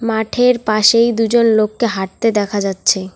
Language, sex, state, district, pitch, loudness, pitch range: Bengali, female, West Bengal, Cooch Behar, 220 Hz, -14 LUFS, 205-230 Hz